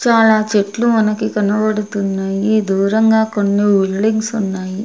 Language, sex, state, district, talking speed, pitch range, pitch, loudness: Telugu, female, Andhra Pradesh, Sri Satya Sai, 100 wpm, 200-220 Hz, 210 Hz, -15 LUFS